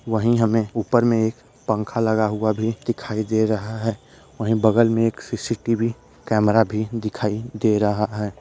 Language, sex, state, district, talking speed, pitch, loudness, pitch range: Hindi, male, Maharashtra, Dhule, 170 wpm, 110 Hz, -21 LUFS, 110-115 Hz